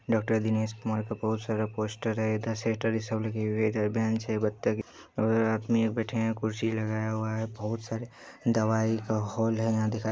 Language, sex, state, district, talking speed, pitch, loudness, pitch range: Hindi, male, Bihar, Supaul, 190 wpm, 110 Hz, -29 LUFS, 110-115 Hz